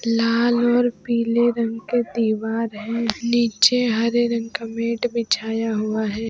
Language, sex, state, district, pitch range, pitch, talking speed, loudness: Hindi, female, West Bengal, Alipurduar, 225-240 Hz, 230 Hz, 145 wpm, -21 LUFS